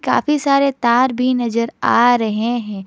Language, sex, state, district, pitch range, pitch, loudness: Hindi, female, Jharkhand, Garhwa, 230-255 Hz, 240 Hz, -16 LUFS